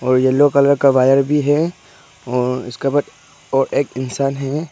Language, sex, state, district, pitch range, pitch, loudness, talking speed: Hindi, male, Arunachal Pradesh, Papum Pare, 130-145 Hz, 140 Hz, -16 LUFS, 165 wpm